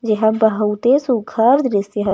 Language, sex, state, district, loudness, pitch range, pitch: Chhattisgarhi, female, Chhattisgarh, Raigarh, -16 LUFS, 210-245 Hz, 220 Hz